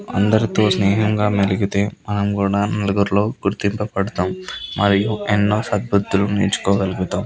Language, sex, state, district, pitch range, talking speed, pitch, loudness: Telugu, male, Andhra Pradesh, Krishna, 100-105 Hz, 100 wpm, 100 Hz, -19 LUFS